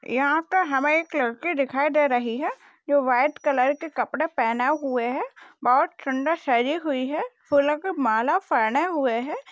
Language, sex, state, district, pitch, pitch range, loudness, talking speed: Hindi, female, Maharashtra, Dhule, 285 Hz, 255-310 Hz, -23 LUFS, 170 wpm